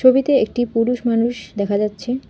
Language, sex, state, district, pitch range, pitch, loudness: Bengali, female, West Bengal, Alipurduar, 215-250 Hz, 240 Hz, -19 LUFS